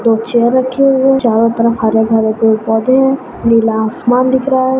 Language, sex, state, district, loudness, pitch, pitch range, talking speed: Hindi, female, Maharashtra, Sindhudurg, -12 LUFS, 235 Hz, 225-260 Hz, 185 wpm